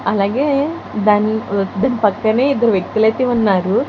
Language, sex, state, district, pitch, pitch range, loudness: Telugu, female, Telangana, Hyderabad, 220 Hz, 205-255 Hz, -16 LUFS